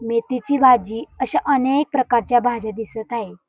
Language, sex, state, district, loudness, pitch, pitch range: Marathi, female, Maharashtra, Dhule, -19 LUFS, 245 Hz, 225-260 Hz